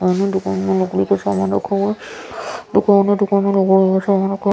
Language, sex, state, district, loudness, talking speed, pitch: Hindi, female, Bihar, Patna, -16 LUFS, 240 wpm, 190 Hz